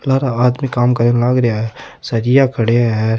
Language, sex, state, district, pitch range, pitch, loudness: Rajasthani, male, Rajasthan, Nagaur, 115-130 Hz, 120 Hz, -15 LUFS